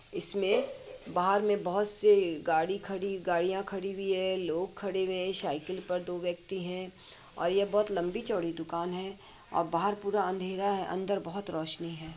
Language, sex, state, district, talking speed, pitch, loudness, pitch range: Hindi, female, Bihar, Madhepura, 165 wpm, 190 Hz, -31 LUFS, 175-200 Hz